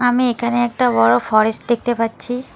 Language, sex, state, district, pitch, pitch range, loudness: Bengali, female, West Bengal, Alipurduar, 240 Hz, 225-245 Hz, -17 LUFS